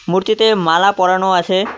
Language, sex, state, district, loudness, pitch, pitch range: Bengali, male, West Bengal, Cooch Behar, -14 LUFS, 190 Hz, 185-200 Hz